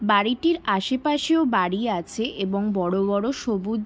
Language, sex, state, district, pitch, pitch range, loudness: Bengali, female, West Bengal, Jalpaiguri, 210 Hz, 195-260 Hz, -23 LUFS